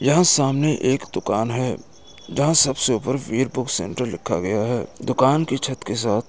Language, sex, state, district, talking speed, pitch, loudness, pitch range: Hindi, male, Uttar Pradesh, Muzaffarnagar, 190 wpm, 130 Hz, -21 LUFS, 120-140 Hz